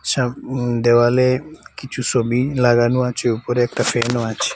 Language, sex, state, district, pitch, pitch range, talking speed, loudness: Bengali, male, Assam, Hailakandi, 120 Hz, 120-130 Hz, 130 wpm, -18 LUFS